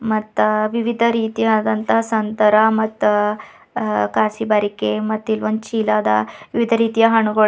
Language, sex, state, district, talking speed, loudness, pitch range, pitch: Kannada, female, Karnataka, Bidar, 120 wpm, -18 LUFS, 210-225 Hz, 215 Hz